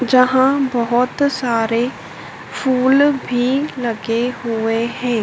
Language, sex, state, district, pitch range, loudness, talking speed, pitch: Hindi, female, Madhya Pradesh, Dhar, 235-265 Hz, -17 LUFS, 90 wpm, 250 Hz